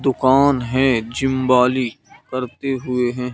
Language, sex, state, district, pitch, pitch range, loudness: Hindi, male, Madhya Pradesh, Katni, 130 Hz, 125-135 Hz, -18 LUFS